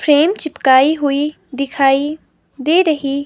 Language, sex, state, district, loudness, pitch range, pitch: Hindi, female, Himachal Pradesh, Shimla, -15 LUFS, 275-310 Hz, 285 Hz